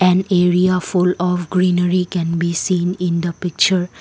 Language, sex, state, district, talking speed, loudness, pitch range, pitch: English, female, Assam, Kamrup Metropolitan, 165 wpm, -17 LUFS, 175-185 Hz, 180 Hz